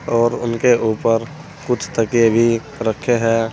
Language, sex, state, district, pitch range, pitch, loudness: Hindi, male, Uttar Pradesh, Saharanpur, 115-120 Hz, 115 Hz, -17 LUFS